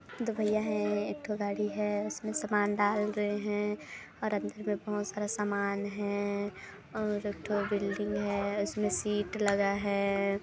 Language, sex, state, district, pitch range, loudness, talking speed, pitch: Hindi, female, Chhattisgarh, Kabirdham, 205-210 Hz, -32 LUFS, 150 wpm, 205 Hz